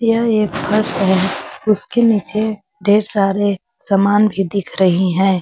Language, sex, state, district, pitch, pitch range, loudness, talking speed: Hindi, female, Jharkhand, Garhwa, 205 Hz, 195-215 Hz, -16 LUFS, 145 wpm